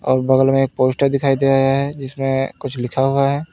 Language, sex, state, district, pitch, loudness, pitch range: Hindi, male, Uttar Pradesh, Lalitpur, 135 Hz, -17 LUFS, 130-140 Hz